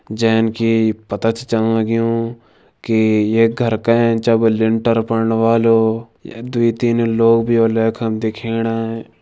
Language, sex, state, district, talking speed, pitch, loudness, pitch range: Kumaoni, male, Uttarakhand, Tehri Garhwal, 145 wpm, 115 Hz, -16 LUFS, 110-115 Hz